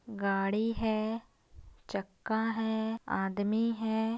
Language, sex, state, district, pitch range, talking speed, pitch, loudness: Hindi, female, Jharkhand, Sahebganj, 205-225 Hz, 85 wpm, 220 Hz, -33 LUFS